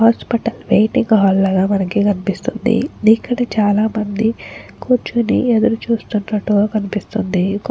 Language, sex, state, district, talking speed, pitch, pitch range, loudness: Telugu, female, Andhra Pradesh, Chittoor, 95 wpm, 215 Hz, 205-230 Hz, -16 LUFS